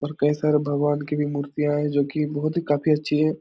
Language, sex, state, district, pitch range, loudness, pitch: Hindi, male, Bihar, Supaul, 145-150 Hz, -23 LUFS, 150 Hz